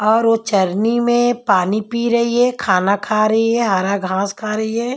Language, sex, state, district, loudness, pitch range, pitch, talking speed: Hindi, female, Bihar, Patna, -16 LUFS, 200-235 Hz, 220 Hz, 205 wpm